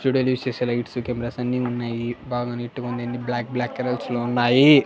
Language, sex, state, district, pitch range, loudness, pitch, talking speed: Telugu, male, Andhra Pradesh, Annamaya, 120-125 Hz, -24 LUFS, 120 Hz, 220 wpm